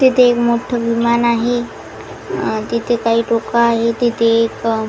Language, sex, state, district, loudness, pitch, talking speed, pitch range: Marathi, female, Maharashtra, Washim, -16 LUFS, 235 Hz, 145 wpm, 230-240 Hz